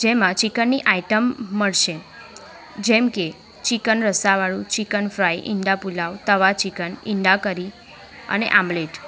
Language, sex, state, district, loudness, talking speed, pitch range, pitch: Gujarati, female, Gujarat, Valsad, -20 LUFS, 125 wpm, 185-220 Hz, 200 Hz